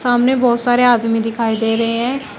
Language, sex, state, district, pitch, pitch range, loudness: Hindi, female, Uttar Pradesh, Shamli, 240 Hz, 225-245 Hz, -15 LUFS